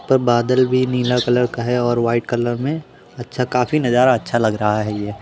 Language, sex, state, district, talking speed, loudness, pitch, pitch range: Hindi, male, Uttar Pradesh, Muzaffarnagar, 220 wpm, -18 LUFS, 120 Hz, 115-125 Hz